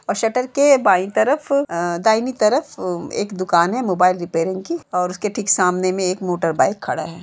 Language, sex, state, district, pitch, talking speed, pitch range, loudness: Hindi, female, Uttar Pradesh, Jalaun, 185 Hz, 190 wpm, 175-220 Hz, -19 LUFS